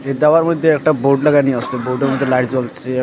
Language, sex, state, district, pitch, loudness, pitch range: Bengali, male, Assam, Hailakandi, 135 Hz, -15 LUFS, 130-150 Hz